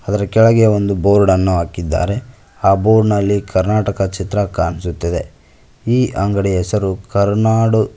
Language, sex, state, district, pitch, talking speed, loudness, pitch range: Kannada, male, Karnataka, Koppal, 100 Hz, 130 wpm, -15 LUFS, 95-110 Hz